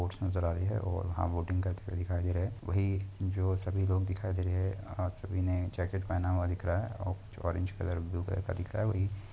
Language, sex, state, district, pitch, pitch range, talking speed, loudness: Hindi, male, Uttar Pradesh, Muzaffarnagar, 95 Hz, 90-95 Hz, 275 wpm, -34 LUFS